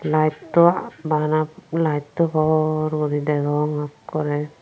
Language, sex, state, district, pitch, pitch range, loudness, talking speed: Chakma, female, Tripura, Unakoti, 155 Hz, 150-155 Hz, -21 LUFS, 90 wpm